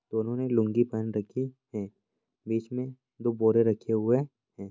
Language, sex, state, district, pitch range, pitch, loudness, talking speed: Hindi, male, Bihar, Jamui, 110-125 Hz, 115 Hz, -29 LUFS, 165 wpm